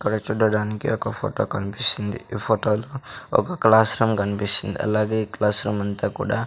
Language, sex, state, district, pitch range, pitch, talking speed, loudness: Telugu, male, Andhra Pradesh, Sri Satya Sai, 105-115 Hz, 105 Hz, 175 wpm, -21 LUFS